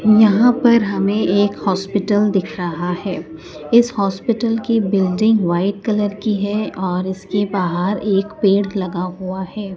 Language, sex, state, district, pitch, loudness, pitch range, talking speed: Hindi, female, Madhya Pradesh, Dhar, 200 Hz, -17 LUFS, 190-215 Hz, 145 wpm